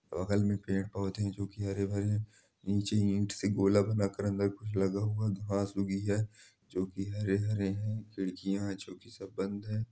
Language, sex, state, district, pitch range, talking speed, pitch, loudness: Hindi, male, Chhattisgarh, Korba, 100-105 Hz, 165 wpm, 100 Hz, -33 LUFS